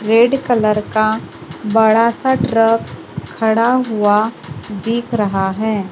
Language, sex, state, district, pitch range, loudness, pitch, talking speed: Hindi, female, Maharashtra, Gondia, 210-230 Hz, -15 LUFS, 220 Hz, 110 wpm